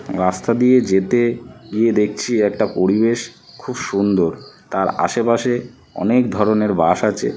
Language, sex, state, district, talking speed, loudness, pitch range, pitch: Bengali, male, West Bengal, North 24 Parganas, 120 wpm, -18 LUFS, 100-120 Hz, 110 Hz